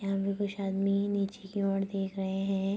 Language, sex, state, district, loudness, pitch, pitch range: Hindi, female, Uttar Pradesh, Budaun, -32 LUFS, 195 Hz, 195-200 Hz